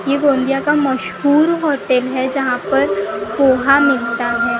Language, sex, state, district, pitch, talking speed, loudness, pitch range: Hindi, female, Maharashtra, Gondia, 260 Hz, 145 wpm, -15 LUFS, 235-280 Hz